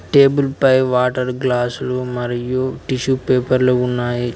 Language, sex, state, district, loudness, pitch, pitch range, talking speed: Telugu, male, Telangana, Mahabubabad, -17 LUFS, 125 Hz, 125-130 Hz, 110 wpm